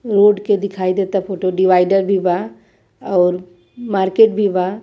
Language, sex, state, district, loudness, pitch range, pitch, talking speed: Bhojpuri, female, Uttar Pradesh, Varanasi, -16 LUFS, 185-205 Hz, 195 Hz, 150 wpm